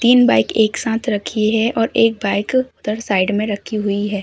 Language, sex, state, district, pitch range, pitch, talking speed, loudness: Hindi, female, Uttar Pradesh, Hamirpur, 205-230 Hz, 215 Hz, 215 wpm, -17 LUFS